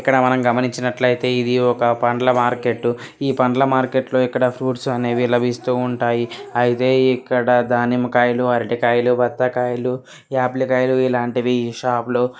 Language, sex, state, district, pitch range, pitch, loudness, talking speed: Telugu, male, Telangana, Karimnagar, 120-125 Hz, 125 Hz, -18 LUFS, 140 wpm